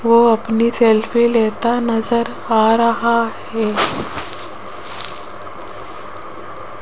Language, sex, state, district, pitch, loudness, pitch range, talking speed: Hindi, female, Rajasthan, Jaipur, 230 Hz, -16 LUFS, 225-235 Hz, 70 wpm